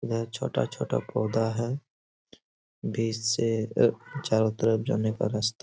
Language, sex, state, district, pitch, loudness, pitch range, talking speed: Hindi, male, Bihar, Bhagalpur, 115 Hz, -28 LUFS, 110-115 Hz, 140 wpm